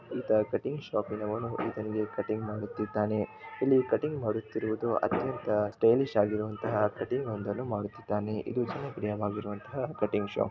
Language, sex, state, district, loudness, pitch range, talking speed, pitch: Kannada, male, Karnataka, Shimoga, -31 LUFS, 105-115 Hz, 110 wpm, 105 Hz